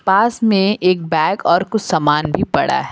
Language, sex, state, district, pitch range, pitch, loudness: Hindi, female, Uttar Pradesh, Lucknow, 165-210 Hz, 190 Hz, -16 LUFS